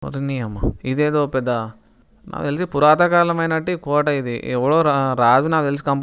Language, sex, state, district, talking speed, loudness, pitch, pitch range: Telugu, male, Andhra Pradesh, Chittoor, 160 wpm, -19 LUFS, 140 Hz, 130-155 Hz